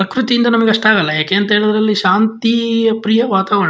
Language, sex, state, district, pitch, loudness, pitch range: Kannada, male, Karnataka, Shimoga, 215 Hz, -13 LUFS, 200-230 Hz